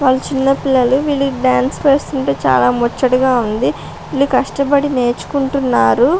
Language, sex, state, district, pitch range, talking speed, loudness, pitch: Telugu, female, Andhra Pradesh, Visakhapatnam, 245-275 Hz, 115 wpm, -15 LUFS, 260 Hz